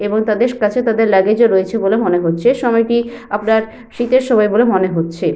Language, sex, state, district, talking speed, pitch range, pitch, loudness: Bengali, female, West Bengal, Jhargram, 200 wpm, 205-235 Hz, 220 Hz, -14 LUFS